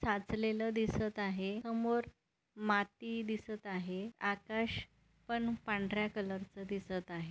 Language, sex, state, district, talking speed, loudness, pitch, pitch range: Marathi, female, Maharashtra, Nagpur, 105 wpm, -38 LUFS, 210 Hz, 195-220 Hz